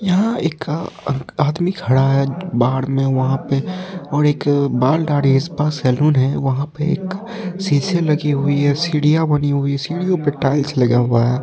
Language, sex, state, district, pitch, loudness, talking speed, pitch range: Hindi, male, Bihar, Purnia, 145 Hz, -18 LUFS, 190 wpm, 135-165 Hz